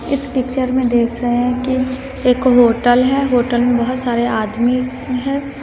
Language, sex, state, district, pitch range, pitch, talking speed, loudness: Hindi, female, Bihar, West Champaran, 240-260 Hz, 250 Hz, 170 wpm, -16 LUFS